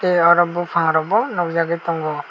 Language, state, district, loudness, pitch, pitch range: Kokborok, Tripura, West Tripura, -18 LUFS, 170 Hz, 165-175 Hz